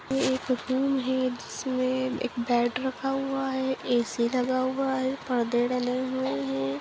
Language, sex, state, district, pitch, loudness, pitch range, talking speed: Hindi, female, Bihar, Jahanabad, 255 Hz, -28 LUFS, 245-265 Hz, 160 wpm